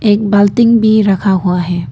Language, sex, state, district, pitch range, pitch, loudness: Hindi, female, Arunachal Pradesh, Papum Pare, 190-215 Hz, 205 Hz, -11 LUFS